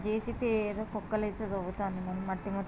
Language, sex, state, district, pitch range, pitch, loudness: Telugu, female, Andhra Pradesh, Krishna, 190-215 Hz, 210 Hz, -34 LUFS